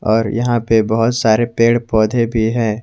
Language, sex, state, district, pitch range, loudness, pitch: Hindi, male, Jharkhand, Garhwa, 110-120 Hz, -15 LUFS, 115 Hz